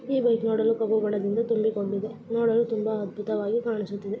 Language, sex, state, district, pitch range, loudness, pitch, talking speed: Kannada, male, Karnataka, Raichur, 210-230 Hz, -26 LUFS, 220 Hz, 145 wpm